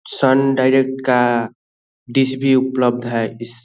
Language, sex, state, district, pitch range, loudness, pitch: Hindi, male, Bihar, Saran, 120-130 Hz, -17 LUFS, 125 Hz